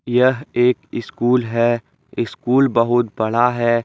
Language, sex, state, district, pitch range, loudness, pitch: Hindi, male, Jharkhand, Deoghar, 120-125 Hz, -18 LUFS, 120 Hz